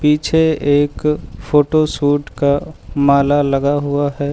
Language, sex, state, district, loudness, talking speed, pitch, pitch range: Hindi, male, Uttar Pradesh, Lucknow, -16 LUFS, 110 wpm, 145 Hz, 140-150 Hz